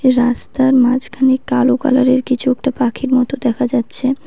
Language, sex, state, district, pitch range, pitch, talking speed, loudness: Bengali, female, West Bengal, Cooch Behar, 250-265 Hz, 255 Hz, 140 wpm, -15 LUFS